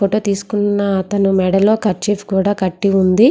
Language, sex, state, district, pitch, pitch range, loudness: Telugu, female, Andhra Pradesh, Srikakulam, 200 Hz, 190-205 Hz, -16 LUFS